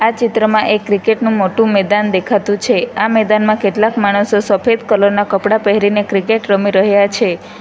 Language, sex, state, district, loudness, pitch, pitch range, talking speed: Gujarati, female, Gujarat, Valsad, -13 LUFS, 210 Hz, 200-220 Hz, 165 wpm